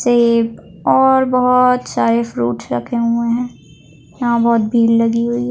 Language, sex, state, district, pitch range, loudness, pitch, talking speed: Hindi, female, Maharashtra, Aurangabad, 150-245 Hz, -15 LUFS, 235 Hz, 155 wpm